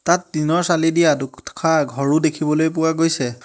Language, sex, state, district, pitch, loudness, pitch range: Assamese, male, Assam, Hailakandi, 160 Hz, -18 LUFS, 145-165 Hz